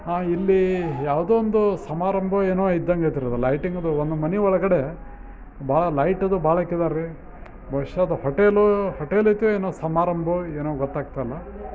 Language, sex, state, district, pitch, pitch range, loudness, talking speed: Kannada, male, Karnataka, Bijapur, 175 Hz, 150-190 Hz, -22 LUFS, 145 wpm